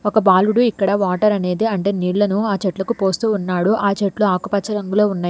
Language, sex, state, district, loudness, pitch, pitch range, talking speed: Telugu, female, Telangana, Hyderabad, -18 LUFS, 200 Hz, 190-210 Hz, 180 wpm